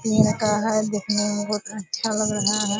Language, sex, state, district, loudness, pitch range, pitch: Hindi, female, Bihar, Purnia, -22 LUFS, 210-215 Hz, 210 Hz